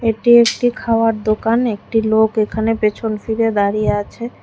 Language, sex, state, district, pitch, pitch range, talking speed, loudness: Bengali, female, Tripura, West Tripura, 225 Hz, 215-230 Hz, 150 wpm, -16 LUFS